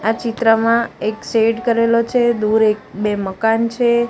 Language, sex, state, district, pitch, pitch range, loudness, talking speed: Gujarati, female, Gujarat, Gandhinagar, 225 Hz, 220-235 Hz, -17 LUFS, 160 wpm